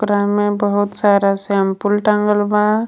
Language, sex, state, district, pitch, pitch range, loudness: Bhojpuri, female, Jharkhand, Palamu, 205 Hz, 200-210 Hz, -16 LUFS